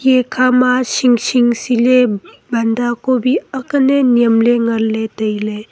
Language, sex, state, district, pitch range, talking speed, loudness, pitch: Wancho, female, Arunachal Pradesh, Longding, 225-255 Hz, 145 wpm, -14 LUFS, 240 Hz